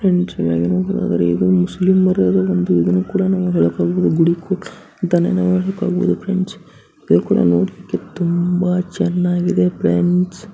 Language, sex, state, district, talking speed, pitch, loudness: Kannada, male, Karnataka, Bijapur, 45 wpm, 175 Hz, -17 LUFS